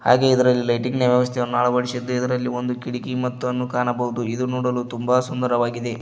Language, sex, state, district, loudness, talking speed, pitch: Kannada, male, Karnataka, Koppal, -21 LUFS, 150 wpm, 125 Hz